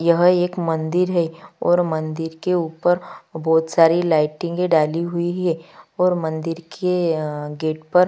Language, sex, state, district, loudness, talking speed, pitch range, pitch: Hindi, female, Chhattisgarh, Kabirdham, -20 LUFS, 150 wpm, 160-175 Hz, 165 Hz